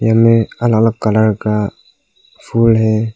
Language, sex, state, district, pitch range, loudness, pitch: Hindi, male, Nagaland, Kohima, 110-115 Hz, -14 LUFS, 110 Hz